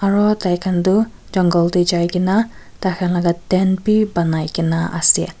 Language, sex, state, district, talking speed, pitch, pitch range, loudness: Nagamese, female, Nagaland, Kohima, 200 wpm, 180 Hz, 170-195 Hz, -17 LUFS